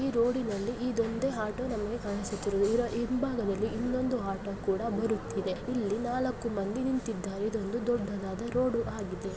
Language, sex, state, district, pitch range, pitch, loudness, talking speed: Kannada, female, Karnataka, Belgaum, 205-245 Hz, 230 Hz, -32 LUFS, 235 wpm